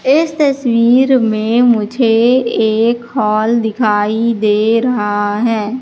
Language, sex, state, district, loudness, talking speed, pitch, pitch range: Hindi, female, Madhya Pradesh, Katni, -13 LUFS, 105 wpm, 230 Hz, 215-250 Hz